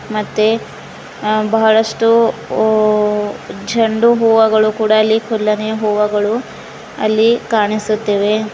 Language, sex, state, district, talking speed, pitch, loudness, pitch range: Kannada, female, Karnataka, Bidar, 85 wpm, 215 Hz, -14 LUFS, 215-225 Hz